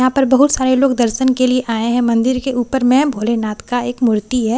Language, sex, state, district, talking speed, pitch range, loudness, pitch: Hindi, female, Bihar, Katihar, 260 wpm, 235-260 Hz, -15 LUFS, 250 Hz